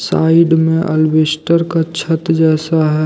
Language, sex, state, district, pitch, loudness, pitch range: Hindi, male, Jharkhand, Deoghar, 160 Hz, -13 LUFS, 155-165 Hz